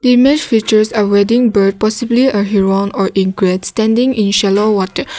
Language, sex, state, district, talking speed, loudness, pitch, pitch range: English, female, Nagaland, Kohima, 125 wpm, -12 LUFS, 210 Hz, 195-235 Hz